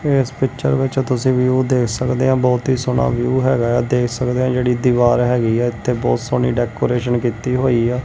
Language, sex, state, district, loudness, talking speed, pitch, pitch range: Punjabi, male, Punjab, Kapurthala, -17 LUFS, 200 wpm, 125 Hz, 120-130 Hz